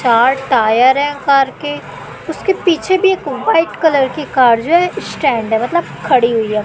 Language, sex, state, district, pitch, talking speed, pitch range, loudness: Hindi, female, Madhya Pradesh, Katni, 275 Hz, 200 wpm, 240-335 Hz, -14 LUFS